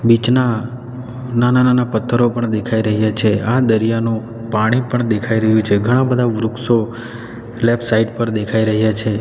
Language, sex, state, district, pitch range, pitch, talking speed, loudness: Gujarati, male, Gujarat, Valsad, 110-120 Hz, 115 Hz, 155 wpm, -16 LUFS